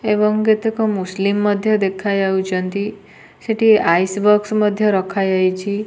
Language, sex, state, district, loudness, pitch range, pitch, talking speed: Odia, female, Odisha, Nuapada, -17 LUFS, 190-215 Hz, 205 Hz, 100 wpm